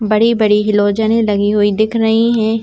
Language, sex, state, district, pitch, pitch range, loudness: Hindi, female, Madhya Pradesh, Bhopal, 220 Hz, 210-225 Hz, -13 LUFS